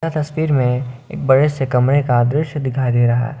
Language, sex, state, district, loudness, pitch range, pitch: Hindi, male, Jharkhand, Garhwa, -17 LUFS, 125-145 Hz, 130 Hz